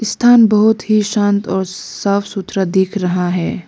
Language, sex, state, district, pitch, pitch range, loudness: Hindi, female, Arunachal Pradesh, Lower Dibang Valley, 200 Hz, 190-215 Hz, -15 LUFS